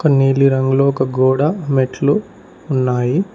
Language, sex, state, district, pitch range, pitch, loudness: Telugu, male, Telangana, Mahabubabad, 130-145 Hz, 135 Hz, -16 LUFS